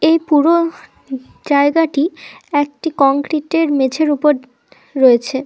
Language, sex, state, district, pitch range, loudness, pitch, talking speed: Bengali, female, West Bengal, Dakshin Dinajpur, 270-320 Hz, -15 LUFS, 290 Hz, 90 wpm